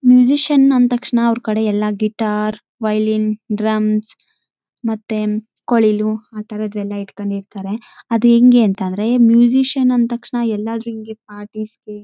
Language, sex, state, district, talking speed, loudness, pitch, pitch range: Kannada, female, Karnataka, Raichur, 95 wpm, -16 LUFS, 220 Hz, 210-235 Hz